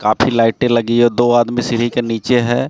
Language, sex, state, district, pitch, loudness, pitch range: Hindi, male, Bihar, Katihar, 120 Hz, -15 LUFS, 115-120 Hz